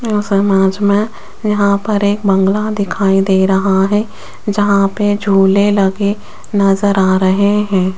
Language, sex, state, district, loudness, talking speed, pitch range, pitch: Hindi, female, Rajasthan, Jaipur, -13 LUFS, 145 wpm, 195-205 Hz, 200 Hz